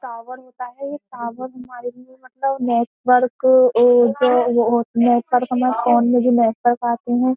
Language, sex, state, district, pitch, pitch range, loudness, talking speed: Hindi, female, Uttar Pradesh, Jyotiba Phule Nagar, 245 Hz, 240-255 Hz, -17 LUFS, 140 wpm